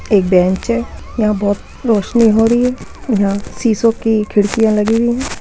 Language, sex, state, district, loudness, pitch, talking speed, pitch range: Hindi, female, Uttar Pradesh, Muzaffarnagar, -14 LUFS, 220 Hz, 200 wpm, 205-235 Hz